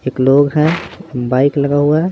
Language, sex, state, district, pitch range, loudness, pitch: Hindi, male, Bihar, Patna, 135-155 Hz, -14 LUFS, 145 Hz